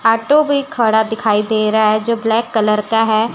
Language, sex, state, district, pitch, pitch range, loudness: Hindi, female, Chandigarh, Chandigarh, 225 Hz, 215-230 Hz, -15 LUFS